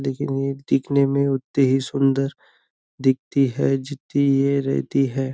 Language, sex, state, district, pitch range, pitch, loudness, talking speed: Hindi, male, Maharashtra, Nagpur, 135-140 Hz, 135 Hz, -21 LUFS, 145 wpm